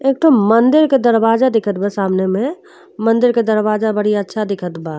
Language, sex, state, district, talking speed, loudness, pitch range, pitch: Bhojpuri, female, Uttar Pradesh, Deoria, 180 wpm, -15 LUFS, 205-260 Hz, 225 Hz